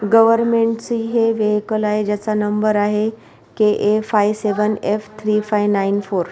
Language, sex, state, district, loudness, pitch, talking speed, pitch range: Marathi, female, Maharashtra, Pune, -18 LUFS, 215 Hz, 160 wpm, 210-220 Hz